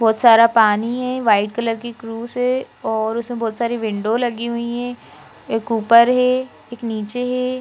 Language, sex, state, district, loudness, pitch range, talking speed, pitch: Hindi, female, Madhya Pradesh, Bhopal, -18 LUFS, 225-245 Hz, 180 wpm, 235 Hz